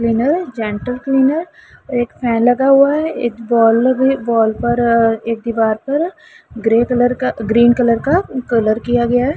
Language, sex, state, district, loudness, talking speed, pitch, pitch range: Hindi, female, Punjab, Pathankot, -15 LUFS, 155 wpm, 240 Hz, 230-270 Hz